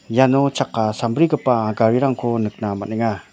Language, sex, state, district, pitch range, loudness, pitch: Garo, male, Meghalaya, West Garo Hills, 110-130 Hz, -19 LUFS, 115 Hz